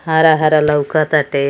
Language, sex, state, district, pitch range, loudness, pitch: Bhojpuri, male, Uttar Pradesh, Gorakhpur, 145-160 Hz, -13 LUFS, 155 Hz